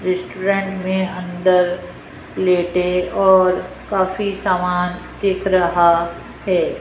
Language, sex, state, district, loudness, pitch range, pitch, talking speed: Hindi, female, Rajasthan, Jaipur, -18 LUFS, 180-190 Hz, 185 Hz, 90 wpm